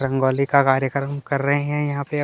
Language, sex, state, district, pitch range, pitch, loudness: Hindi, male, Chhattisgarh, Kabirdham, 135-145 Hz, 140 Hz, -20 LUFS